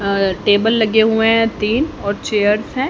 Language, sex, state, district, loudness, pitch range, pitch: Hindi, female, Haryana, Jhajjar, -15 LUFS, 205-225 Hz, 220 Hz